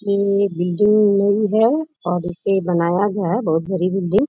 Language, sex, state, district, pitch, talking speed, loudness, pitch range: Hindi, female, Bihar, Bhagalpur, 200 Hz, 180 wpm, -18 LUFS, 175-210 Hz